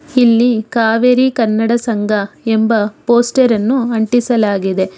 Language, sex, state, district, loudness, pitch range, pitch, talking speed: Kannada, female, Karnataka, Bangalore, -13 LUFS, 215-245 Hz, 230 Hz, 95 wpm